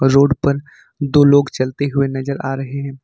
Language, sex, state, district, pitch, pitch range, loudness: Hindi, male, Jharkhand, Ranchi, 140 Hz, 135-140 Hz, -17 LUFS